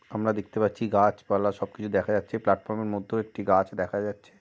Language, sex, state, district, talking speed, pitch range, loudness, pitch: Bengali, male, West Bengal, Malda, 220 wpm, 100-110 Hz, -27 LUFS, 105 Hz